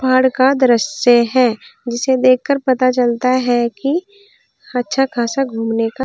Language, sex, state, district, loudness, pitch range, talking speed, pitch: Hindi, female, Uttar Pradesh, Saharanpur, -15 LUFS, 240-270 Hz, 150 wpm, 255 Hz